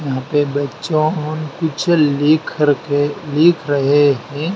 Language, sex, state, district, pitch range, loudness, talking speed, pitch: Hindi, male, Madhya Pradesh, Dhar, 145-155 Hz, -16 LUFS, 120 wpm, 150 Hz